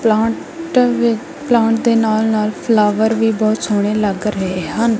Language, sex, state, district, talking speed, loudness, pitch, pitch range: Punjabi, female, Punjab, Kapurthala, 155 wpm, -16 LUFS, 220 Hz, 215-235 Hz